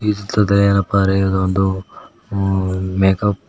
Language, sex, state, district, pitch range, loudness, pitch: Kannada, male, Karnataka, Koppal, 95-100 Hz, -17 LUFS, 95 Hz